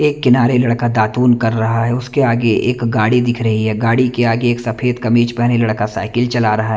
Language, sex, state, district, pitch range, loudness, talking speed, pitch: Hindi, male, Chandigarh, Chandigarh, 115-125 Hz, -15 LUFS, 220 wpm, 120 Hz